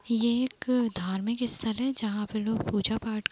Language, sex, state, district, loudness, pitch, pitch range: Hindi, female, Uttar Pradesh, Deoria, -29 LUFS, 225 Hz, 215-240 Hz